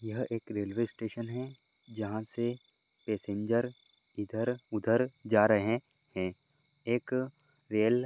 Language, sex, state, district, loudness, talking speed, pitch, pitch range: Hindi, male, Goa, North and South Goa, -33 LUFS, 120 wpm, 115 Hz, 110-130 Hz